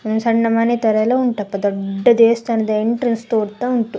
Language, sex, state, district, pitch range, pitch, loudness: Kannada, female, Karnataka, Dakshina Kannada, 215-235 Hz, 230 Hz, -17 LUFS